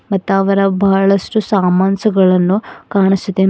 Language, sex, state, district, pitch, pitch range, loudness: Kannada, female, Karnataka, Bidar, 195 Hz, 190-200 Hz, -13 LUFS